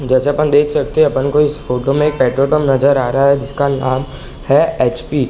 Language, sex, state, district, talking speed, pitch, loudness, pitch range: Hindi, male, Bihar, Sitamarhi, 250 wpm, 140 Hz, -14 LUFS, 135-150 Hz